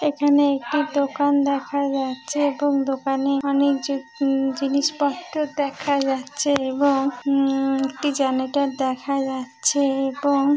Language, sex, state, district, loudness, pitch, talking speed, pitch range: Bengali, female, West Bengal, Dakshin Dinajpur, -22 LUFS, 280 Hz, 120 wpm, 270-285 Hz